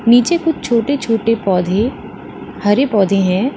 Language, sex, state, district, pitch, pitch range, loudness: Hindi, female, Uttar Pradesh, Lalitpur, 230 Hz, 200-265 Hz, -15 LUFS